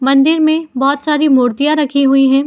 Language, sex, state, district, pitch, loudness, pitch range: Hindi, female, Uttar Pradesh, Etah, 280 Hz, -12 LUFS, 270-305 Hz